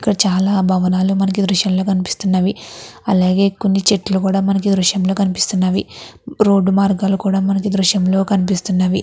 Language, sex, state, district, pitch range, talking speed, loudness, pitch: Telugu, female, Andhra Pradesh, Guntur, 185-195 Hz, 165 wpm, -16 LUFS, 195 Hz